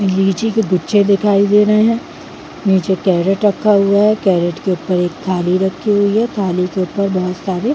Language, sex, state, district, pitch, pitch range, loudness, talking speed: Hindi, female, Chhattisgarh, Bilaspur, 195 Hz, 185-210 Hz, -15 LUFS, 195 wpm